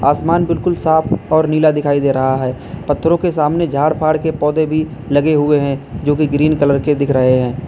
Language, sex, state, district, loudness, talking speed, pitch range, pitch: Hindi, male, Uttar Pradesh, Lalitpur, -15 LUFS, 210 wpm, 140-155 Hz, 150 Hz